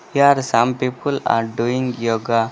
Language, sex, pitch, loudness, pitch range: English, male, 125 Hz, -19 LUFS, 115-135 Hz